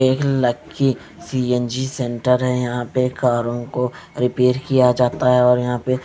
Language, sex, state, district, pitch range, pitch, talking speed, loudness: Hindi, male, Punjab, Fazilka, 125-130 Hz, 125 Hz, 190 wpm, -19 LUFS